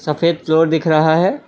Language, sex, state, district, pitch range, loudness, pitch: Hindi, male, Assam, Kamrup Metropolitan, 160-165 Hz, -15 LUFS, 160 Hz